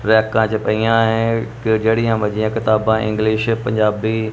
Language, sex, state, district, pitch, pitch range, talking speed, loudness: Punjabi, male, Punjab, Kapurthala, 110 Hz, 110-115 Hz, 140 wpm, -17 LUFS